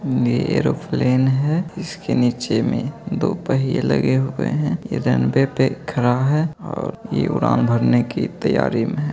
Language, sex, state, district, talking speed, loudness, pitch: Angika, male, Bihar, Begusarai, 165 wpm, -20 LUFS, 125 Hz